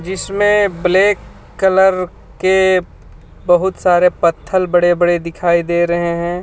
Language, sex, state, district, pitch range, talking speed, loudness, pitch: Hindi, male, Jharkhand, Ranchi, 170-190 Hz, 120 wpm, -14 LUFS, 175 Hz